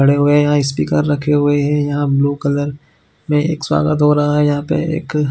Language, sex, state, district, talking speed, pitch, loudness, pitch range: Hindi, male, Chhattisgarh, Bilaspur, 225 wpm, 145 Hz, -15 LUFS, 145-150 Hz